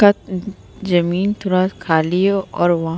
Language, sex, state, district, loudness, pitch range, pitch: Hindi, female, Bihar, Vaishali, -18 LUFS, 175-195 Hz, 185 Hz